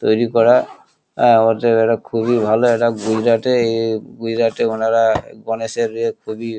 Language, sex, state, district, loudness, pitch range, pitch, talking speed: Bengali, male, West Bengal, Kolkata, -17 LUFS, 110-120 Hz, 115 Hz, 80 wpm